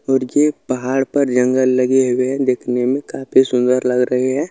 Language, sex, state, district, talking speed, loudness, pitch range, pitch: Maithili, male, Bihar, Supaul, 200 wpm, -16 LUFS, 125-135 Hz, 130 Hz